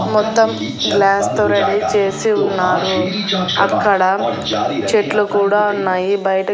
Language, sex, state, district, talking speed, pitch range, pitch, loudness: Telugu, female, Andhra Pradesh, Annamaya, 100 wpm, 190-205 Hz, 200 Hz, -15 LUFS